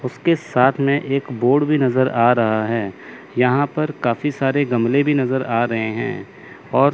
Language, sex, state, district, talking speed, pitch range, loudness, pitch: Hindi, male, Chandigarh, Chandigarh, 180 wpm, 120-140 Hz, -19 LUFS, 130 Hz